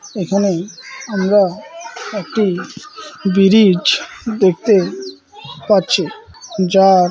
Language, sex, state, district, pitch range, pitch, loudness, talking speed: Bengali, male, West Bengal, Malda, 190-245 Hz, 205 Hz, -15 LUFS, 60 wpm